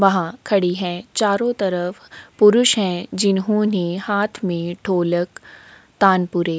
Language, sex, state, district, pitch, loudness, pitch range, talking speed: Hindi, female, Uttarakhand, Tehri Garhwal, 190 Hz, -19 LUFS, 175-205 Hz, 120 wpm